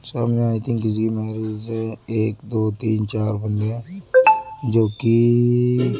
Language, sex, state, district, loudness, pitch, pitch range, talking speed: Hindi, male, Bihar, Kishanganj, -20 LUFS, 115 Hz, 110-120 Hz, 150 wpm